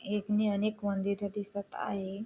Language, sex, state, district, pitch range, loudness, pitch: Marathi, female, Maharashtra, Dhule, 200-210 Hz, -33 LUFS, 200 Hz